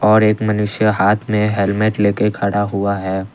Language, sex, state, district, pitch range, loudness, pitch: Hindi, male, Assam, Kamrup Metropolitan, 100-105 Hz, -16 LUFS, 105 Hz